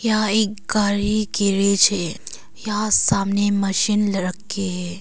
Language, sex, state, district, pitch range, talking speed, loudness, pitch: Hindi, female, Arunachal Pradesh, Longding, 195-210 Hz, 130 wpm, -19 LUFS, 200 Hz